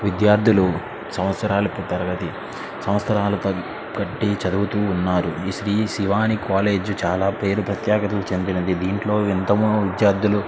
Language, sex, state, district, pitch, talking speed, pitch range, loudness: Telugu, male, Andhra Pradesh, Srikakulam, 100 Hz, 90 wpm, 95-105 Hz, -21 LUFS